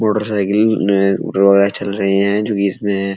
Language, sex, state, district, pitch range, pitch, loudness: Hindi, male, Uttar Pradesh, Etah, 100-105 Hz, 100 Hz, -15 LUFS